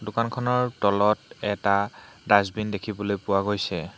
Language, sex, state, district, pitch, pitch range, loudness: Assamese, male, Assam, Hailakandi, 105 Hz, 100-105 Hz, -25 LUFS